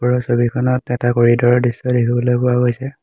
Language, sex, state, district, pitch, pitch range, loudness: Assamese, male, Assam, Hailakandi, 125 Hz, 120-125 Hz, -16 LUFS